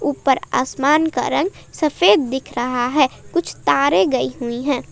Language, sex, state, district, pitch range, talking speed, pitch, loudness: Hindi, female, Jharkhand, Palamu, 260-305 Hz, 160 wpm, 280 Hz, -18 LUFS